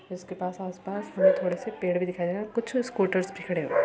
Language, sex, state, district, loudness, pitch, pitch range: Hindi, female, Uttar Pradesh, Muzaffarnagar, -28 LUFS, 185 Hz, 180-205 Hz